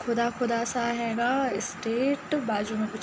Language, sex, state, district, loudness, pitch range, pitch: Hindi, female, Uttar Pradesh, Jalaun, -28 LUFS, 225-250 Hz, 235 Hz